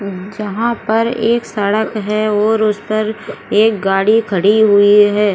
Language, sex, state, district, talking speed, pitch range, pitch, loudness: Hindi, female, Bihar, Saran, 155 wpm, 205-220 Hz, 215 Hz, -14 LUFS